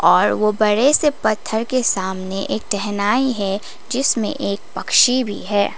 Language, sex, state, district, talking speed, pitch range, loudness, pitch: Hindi, female, Sikkim, Gangtok, 155 wpm, 200-255 Hz, -18 LUFS, 215 Hz